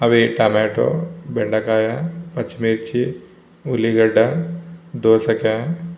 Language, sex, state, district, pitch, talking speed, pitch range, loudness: Telugu, male, Andhra Pradesh, Visakhapatnam, 120 Hz, 70 wpm, 110-165 Hz, -19 LUFS